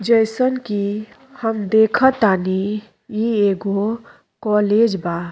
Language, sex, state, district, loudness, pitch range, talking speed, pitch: Bhojpuri, female, Uttar Pradesh, Deoria, -18 LUFS, 200-230 Hz, 100 wpm, 215 Hz